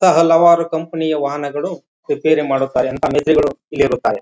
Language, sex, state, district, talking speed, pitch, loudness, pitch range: Kannada, male, Karnataka, Bijapur, 115 wpm, 160 Hz, -16 LUFS, 140-170 Hz